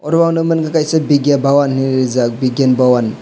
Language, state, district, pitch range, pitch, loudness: Kokborok, Tripura, West Tripura, 130-160 Hz, 140 Hz, -14 LUFS